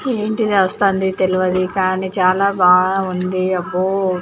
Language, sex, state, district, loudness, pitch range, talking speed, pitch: Telugu, female, Telangana, Nalgonda, -16 LUFS, 185-195 Hz, 115 wpm, 185 Hz